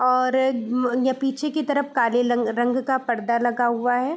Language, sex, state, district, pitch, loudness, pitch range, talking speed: Hindi, female, Bihar, Vaishali, 250 Hz, -22 LUFS, 240-265 Hz, 200 wpm